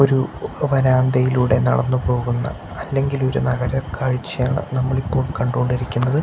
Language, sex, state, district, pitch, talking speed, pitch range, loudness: Malayalam, male, Kerala, Kasaragod, 130 Hz, 95 wpm, 125-135 Hz, -20 LUFS